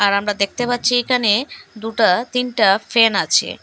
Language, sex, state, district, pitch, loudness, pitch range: Bengali, female, Assam, Hailakandi, 225 Hz, -17 LUFS, 210-250 Hz